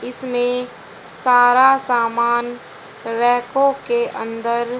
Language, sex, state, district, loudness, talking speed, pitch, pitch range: Hindi, female, Haryana, Jhajjar, -17 LUFS, 75 wpm, 245 Hz, 240-255 Hz